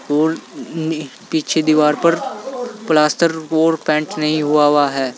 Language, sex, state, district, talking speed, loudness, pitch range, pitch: Hindi, male, Uttar Pradesh, Saharanpur, 140 wpm, -17 LUFS, 150-170 Hz, 160 Hz